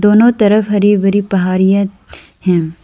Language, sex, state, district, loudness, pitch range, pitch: Hindi, female, Arunachal Pradesh, Lower Dibang Valley, -12 LUFS, 185-205 Hz, 200 Hz